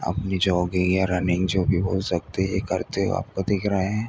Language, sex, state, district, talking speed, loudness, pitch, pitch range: Hindi, male, Uttar Pradesh, Hamirpur, 235 wpm, -24 LUFS, 95 Hz, 90-95 Hz